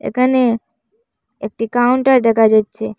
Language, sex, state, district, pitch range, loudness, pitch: Bengali, female, Assam, Hailakandi, 220-255 Hz, -14 LUFS, 240 Hz